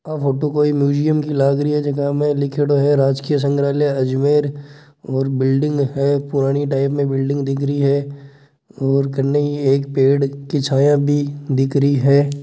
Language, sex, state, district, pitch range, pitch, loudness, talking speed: Marwari, male, Rajasthan, Nagaur, 140-145 Hz, 140 Hz, -17 LUFS, 175 wpm